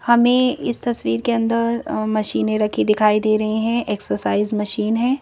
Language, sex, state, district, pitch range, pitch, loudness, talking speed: Hindi, female, Madhya Pradesh, Bhopal, 210-235 Hz, 215 Hz, -19 LUFS, 160 wpm